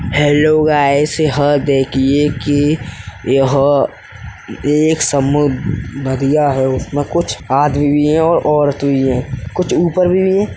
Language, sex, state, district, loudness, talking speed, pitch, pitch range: Hindi, male, Uttar Pradesh, Hamirpur, -14 LUFS, 130 wpm, 145 Hz, 135-150 Hz